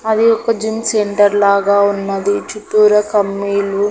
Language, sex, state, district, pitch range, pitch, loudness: Telugu, female, Andhra Pradesh, Annamaya, 200-215 Hz, 205 Hz, -14 LUFS